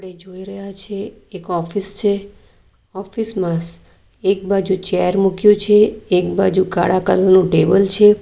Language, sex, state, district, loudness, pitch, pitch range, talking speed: Gujarati, female, Gujarat, Valsad, -16 LUFS, 195 Hz, 185-200 Hz, 155 wpm